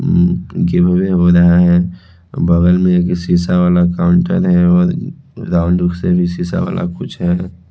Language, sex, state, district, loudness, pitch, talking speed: Hindi, male, Chhattisgarh, Raipur, -13 LUFS, 90 Hz, 155 wpm